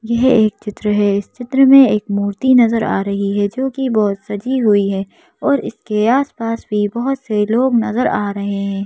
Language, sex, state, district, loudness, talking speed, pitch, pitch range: Hindi, female, Madhya Pradesh, Bhopal, -16 LUFS, 195 wpm, 215 Hz, 205-250 Hz